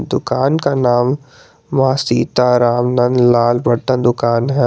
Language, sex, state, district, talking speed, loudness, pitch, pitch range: Hindi, male, Jharkhand, Garhwa, 115 wpm, -14 LUFS, 125 Hz, 120-135 Hz